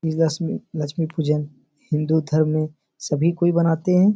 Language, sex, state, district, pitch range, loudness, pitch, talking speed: Hindi, male, Bihar, Supaul, 150-165 Hz, -22 LUFS, 155 Hz, 175 wpm